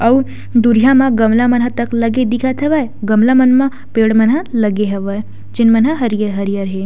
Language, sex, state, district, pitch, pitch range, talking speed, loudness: Chhattisgarhi, female, Chhattisgarh, Sukma, 235 Hz, 215-255 Hz, 200 wpm, -13 LUFS